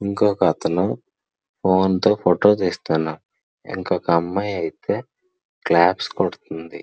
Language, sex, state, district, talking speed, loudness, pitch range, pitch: Telugu, male, Andhra Pradesh, Srikakulam, 80 wpm, -20 LUFS, 85-105 Hz, 95 Hz